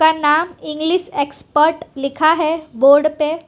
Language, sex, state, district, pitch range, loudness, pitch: Hindi, female, Gujarat, Valsad, 295-320 Hz, -16 LUFS, 310 Hz